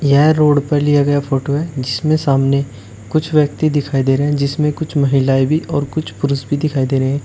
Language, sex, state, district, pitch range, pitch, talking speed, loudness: Hindi, male, Uttar Pradesh, Shamli, 135-150 Hz, 145 Hz, 215 wpm, -16 LUFS